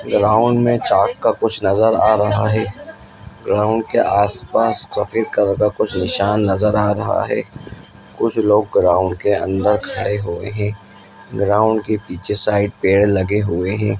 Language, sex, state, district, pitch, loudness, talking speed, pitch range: Hindi, male, Bihar, Bhagalpur, 105 Hz, -17 LUFS, 160 wpm, 100-110 Hz